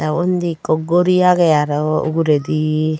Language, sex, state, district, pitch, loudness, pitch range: Chakma, female, Tripura, Dhalai, 155 Hz, -16 LUFS, 155-175 Hz